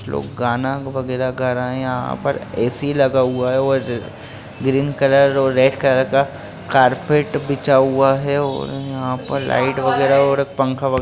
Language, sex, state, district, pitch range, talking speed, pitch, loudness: Hindi, male, Bihar, Lakhisarai, 130-140 Hz, 175 wpm, 135 Hz, -18 LUFS